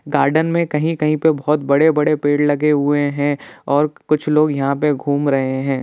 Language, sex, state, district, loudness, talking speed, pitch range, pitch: Hindi, male, Bihar, Jahanabad, -17 LUFS, 185 wpm, 145-150 Hz, 150 Hz